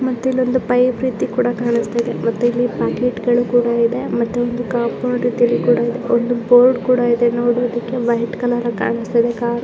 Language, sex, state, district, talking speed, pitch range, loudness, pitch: Kannada, female, Karnataka, Chamarajanagar, 125 wpm, 235-245 Hz, -17 LUFS, 240 Hz